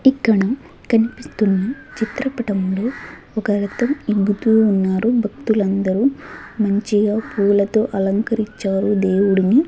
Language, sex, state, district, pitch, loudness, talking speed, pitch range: Telugu, female, Andhra Pradesh, Sri Satya Sai, 215 Hz, -19 LUFS, 75 wpm, 200-235 Hz